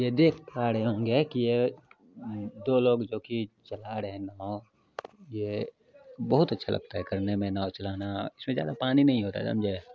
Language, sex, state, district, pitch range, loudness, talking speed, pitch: Hindi, male, Bihar, Araria, 100-125 Hz, -29 LUFS, 185 wpm, 110 Hz